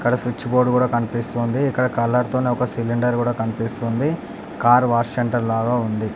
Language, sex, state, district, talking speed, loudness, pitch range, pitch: Telugu, male, Andhra Pradesh, Anantapur, 175 wpm, -20 LUFS, 115-125 Hz, 120 Hz